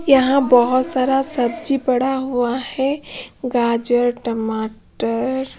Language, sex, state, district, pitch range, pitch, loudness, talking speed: Hindi, female, Punjab, Pathankot, 240-265 Hz, 255 Hz, -18 LUFS, 95 wpm